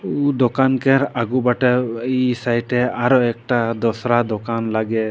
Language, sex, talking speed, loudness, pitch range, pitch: Sadri, male, 140 wpm, -19 LUFS, 115-130 Hz, 120 Hz